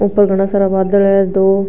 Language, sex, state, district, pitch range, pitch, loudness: Marwari, female, Rajasthan, Nagaur, 195-200 Hz, 195 Hz, -13 LUFS